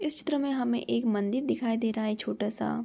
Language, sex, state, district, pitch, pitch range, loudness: Hindi, female, Bihar, Begusarai, 230 Hz, 210-265 Hz, -29 LUFS